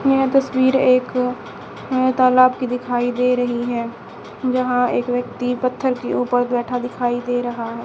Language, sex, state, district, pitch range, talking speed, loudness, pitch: Hindi, female, Haryana, Charkhi Dadri, 245-255 Hz, 155 wpm, -19 LUFS, 245 Hz